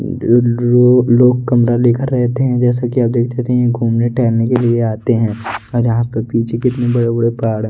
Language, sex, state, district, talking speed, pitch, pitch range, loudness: Hindi, male, Odisha, Nuapada, 210 wpm, 120 Hz, 115-125 Hz, -14 LUFS